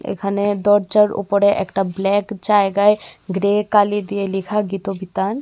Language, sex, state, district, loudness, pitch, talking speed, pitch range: Bengali, female, Tripura, West Tripura, -18 LUFS, 200 Hz, 135 wpm, 195-205 Hz